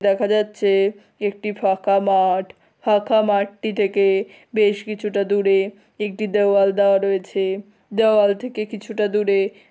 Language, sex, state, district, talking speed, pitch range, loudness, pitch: Bengali, female, West Bengal, Malda, 125 wpm, 195-210 Hz, -20 LUFS, 205 Hz